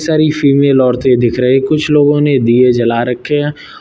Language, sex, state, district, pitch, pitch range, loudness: Hindi, male, Uttar Pradesh, Lucknow, 135 Hz, 125-145 Hz, -11 LUFS